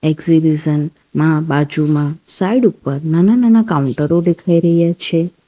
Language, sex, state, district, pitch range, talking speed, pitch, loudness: Gujarati, female, Gujarat, Valsad, 150-175 Hz, 120 wpm, 165 Hz, -14 LUFS